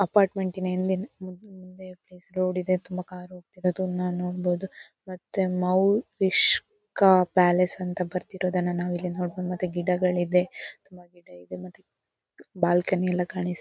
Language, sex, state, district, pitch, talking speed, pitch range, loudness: Kannada, female, Karnataka, Dakshina Kannada, 180 Hz, 105 wpm, 180-185 Hz, -25 LUFS